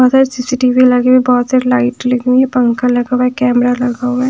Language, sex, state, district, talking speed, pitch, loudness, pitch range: Hindi, female, Punjab, Pathankot, 250 wpm, 250 Hz, -12 LUFS, 245-255 Hz